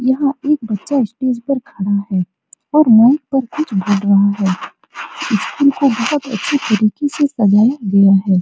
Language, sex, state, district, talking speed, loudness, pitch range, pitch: Hindi, female, Bihar, Supaul, 165 wpm, -15 LUFS, 200-280 Hz, 235 Hz